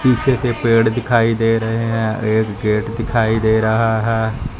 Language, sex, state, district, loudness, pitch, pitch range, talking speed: Hindi, male, Punjab, Fazilka, -17 LUFS, 115 Hz, 110-115 Hz, 170 wpm